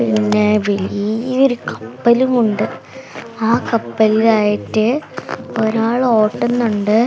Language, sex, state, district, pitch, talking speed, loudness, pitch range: Malayalam, female, Kerala, Kasaragod, 220 Hz, 75 wpm, -16 LUFS, 210-235 Hz